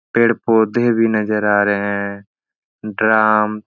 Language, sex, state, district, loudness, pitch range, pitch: Hindi, male, Uttar Pradesh, Etah, -16 LUFS, 105-110 Hz, 105 Hz